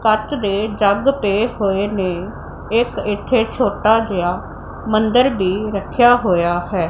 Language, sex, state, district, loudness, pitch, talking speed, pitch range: Punjabi, female, Punjab, Pathankot, -17 LUFS, 210 Hz, 130 wpm, 195-225 Hz